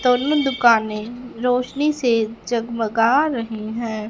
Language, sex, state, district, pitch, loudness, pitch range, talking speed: Hindi, female, Punjab, Fazilka, 235 Hz, -20 LUFS, 225-250 Hz, 100 wpm